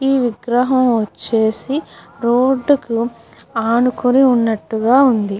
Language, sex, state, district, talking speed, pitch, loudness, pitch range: Telugu, female, Andhra Pradesh, Guntur, 90 wpm, 240 Hz, -16 LUFS, 225-260 Hz